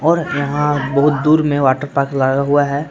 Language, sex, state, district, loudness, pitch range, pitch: Hindi, male, Jharkhand, Palamu, -15 LUFS, 140-150 Hz, 145 Hz